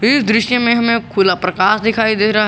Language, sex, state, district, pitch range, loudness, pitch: Hindi, male, Jharkhand, Garhwa, 210-230 Hz, -14 LUFS, 220 Hz